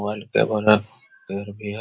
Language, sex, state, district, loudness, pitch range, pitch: Hindi, male, Bihar, Vaishali, -22 LUFS, 100-105 Hz, 105 Hz